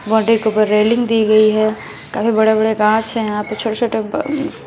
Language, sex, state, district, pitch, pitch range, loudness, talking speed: Hindi, female, Odisha, Sambalpur, 220 Hz, 215-225 Hz, -15 LUFS, 180 wpm